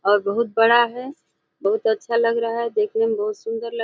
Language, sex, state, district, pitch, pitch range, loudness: Hindi, female, Uttar Pradesh, Deoria, 235 Hz, 225-320 Hz, -21 LUFS